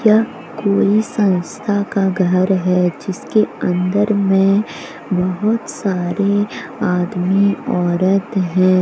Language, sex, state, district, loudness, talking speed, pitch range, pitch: Hindi, female, Jharkhand, Deoghar, -17 LUFS, 95 wpm, 185-205 Hz, 195 Hz